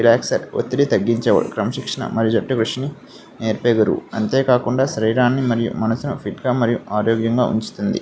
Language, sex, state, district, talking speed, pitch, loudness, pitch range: Telugu, male, Andhra Pradesh, Visakhapatnam, 125 wpm, 115 Hz, -19 LUFS, 115-125 Hz